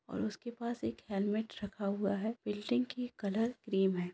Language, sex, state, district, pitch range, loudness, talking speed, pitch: Hindi, female, Bihar, Saran, 200-235 Hz, -37 LUFS, 190 wpm, 210 Hz